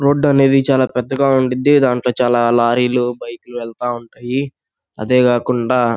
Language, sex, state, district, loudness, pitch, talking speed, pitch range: Telugu, male, Andhra Pradesh, Guntur, -15 LUFS, 125 Hz, 140 wpm, 120-135 Hz